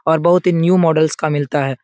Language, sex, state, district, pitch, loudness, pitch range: Hindi, male, Bihar, Supaul, 160 Hz, -15 LUFS, 150-175 Hz